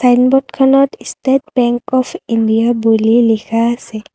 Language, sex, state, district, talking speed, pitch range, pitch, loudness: Assamese, female, Assam, Kamrup Metropolitan, 115 wpm, 225-265 Hz, 240 Hz, -13 LUFS